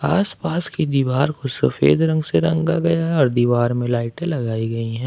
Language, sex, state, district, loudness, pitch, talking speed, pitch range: Hindi, male, Jharkhand, Ranchi, -19 LUFS, 140 Hz, 190 wpm, 120-160 Hz